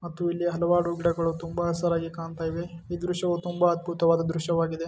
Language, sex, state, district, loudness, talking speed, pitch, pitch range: Kannada, male, Karnataka, Dharwad, -27 LUFS, 160 wpm, 170 Hz, 165-175 Hz